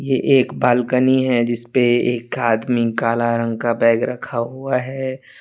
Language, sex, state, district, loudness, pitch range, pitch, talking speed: Hindi, male, Tripura, West Tripura, -18 LUFS, 115-130 Hz, 120 Hz, 155 wpm